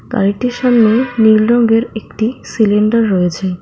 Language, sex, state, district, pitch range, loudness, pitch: Bengali, female, West Bengal, Alipurduar, 210-235 Hz, -13 LUFS, 220 Hz